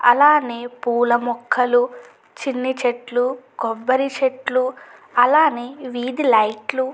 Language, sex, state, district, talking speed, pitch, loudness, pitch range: Telugu, female, Andhra Pradesh, Chittoor, 95 wpm, 250 Hz, -19 LUFS, 240-260 Hz